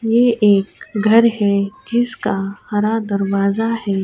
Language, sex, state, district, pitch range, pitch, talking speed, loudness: Urdu, female, Uttar Pradesh, Budaun, 200-230 Hz, 210 Hz, 120 wpm, -17 LUFS